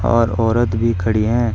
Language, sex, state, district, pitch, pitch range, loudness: Hindi, male, Uttar Pradesh, Shamli, 115 Hz, 110-115 Hz, -17 LUFS